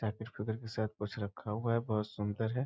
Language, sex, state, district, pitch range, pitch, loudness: Hindi, male, Bihar, East Champaran, 105-115 Hz, 110 Hz, -37 LUFS